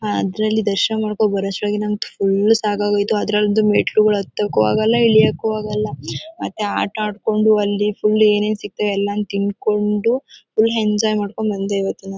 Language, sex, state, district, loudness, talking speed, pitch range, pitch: Kannada, female, Karnataka, Mysore, -18 LUFS, 145 wpm, 205-215 Hz, 210 Hz